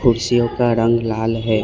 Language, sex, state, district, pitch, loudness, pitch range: Hindi, male, Assam, Kamrup Metropolitan, 115 Hz, -17 LUFS, 115-120 Hz